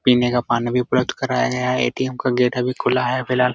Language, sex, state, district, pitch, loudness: Hindi, male, Bihar, Araria, 125 Hz, -20 LUFS